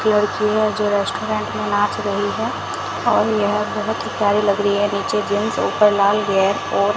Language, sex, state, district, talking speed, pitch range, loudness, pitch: Hindi, female, Rajasthan, Bikaner, 190 wpm, 200-210 Hz, -19 LUFS, 205 Hz